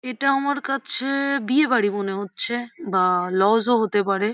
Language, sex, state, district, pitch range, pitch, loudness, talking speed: Bengali, female, West Bengal, Jhargram, 200-275 Hz, 235 Hz, -20 LUFS, 165 wpm